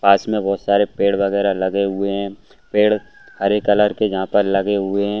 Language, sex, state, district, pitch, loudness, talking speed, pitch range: Hindi, male, Chhattisgarh, Bastar, 100 Hz, -18 LUFS, 205 wpm, 100-105 Hz